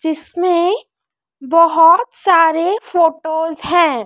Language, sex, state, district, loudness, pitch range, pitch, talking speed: Hindi, female, Madhya Pradesh, Dhar, -14 LUFS, 320-355 Hz, 335 Hz, 75 wpm